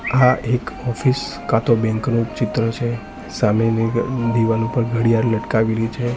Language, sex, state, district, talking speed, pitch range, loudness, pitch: Gujarati, male, Gujarat, Gandhinagar, 155 wpm, 115-120 Hz, -19 LUFS, 115 Hz